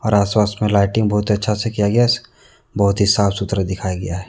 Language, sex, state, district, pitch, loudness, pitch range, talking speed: Hindi, male, Jharkhand, Deoghar, 105 Hz, -17 LUFS, 100-105 Hz, 250 wpm